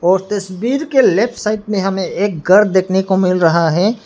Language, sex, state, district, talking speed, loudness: Hindi, male, Arunachal Pradesh, Lower Dibang Valley, 205 wpm, -15 LUFS